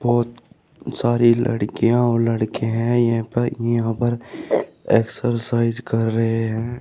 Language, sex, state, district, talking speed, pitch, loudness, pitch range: Hindi, male, Uttar Pradesh, Shamli, 125 wpm, 115 Hz, -20 LUFS, 115-120 Hz